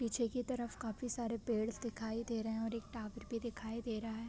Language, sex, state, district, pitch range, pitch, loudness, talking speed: Hindi, female, Chhattisgarh, Bilaspur, 225-235 Hz, 230 Hz, -41 LUFS, 250 wpm